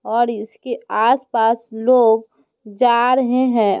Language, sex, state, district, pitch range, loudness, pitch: Hindi, female, Bihar, Muzaffarpur, 220-250 Hz, -17 LUFS, 235 Hz